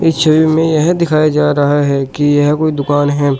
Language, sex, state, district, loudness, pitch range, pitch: Hindi, male, Uttar Pradesh, Shamli, -12 LUFS, 145-155 Hz, 150 Hz